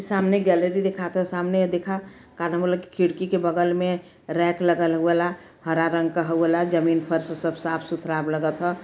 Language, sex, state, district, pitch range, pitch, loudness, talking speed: Bhojpuri, female, Uttar Pradesh, Varanasi, 165-180 Hz, 175 Hz, -23 LUFS, 225 wpm